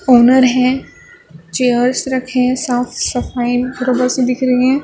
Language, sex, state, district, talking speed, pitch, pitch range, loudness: Hindi, female, Maharashtra, Gondia, 125 wpm, 250 Hz, 245-255 Hz, -14 LUFS